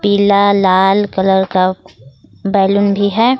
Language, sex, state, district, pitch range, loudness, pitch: Hindi, female, Jharkhand, Garhwa, 185-200 Hz, -12 LUFS, 195 Hz